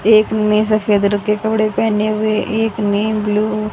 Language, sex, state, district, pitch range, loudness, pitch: Hindi, female, Haryana, Rohtak, 210-215 Hz, -16 LUFS, 215 Hz